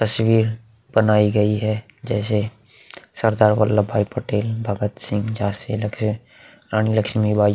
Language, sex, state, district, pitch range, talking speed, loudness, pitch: Hindi, male, Bihar, Vaishali, 105-110 Hz, 135 wpm, -20 LUFS, 110 Hz